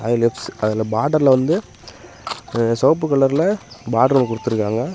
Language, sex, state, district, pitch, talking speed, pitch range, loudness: Tamil, male, Tamil Nadu, Namakkal, 120 Hz, 110 wpm, 115-140 Hz, -18 LUFS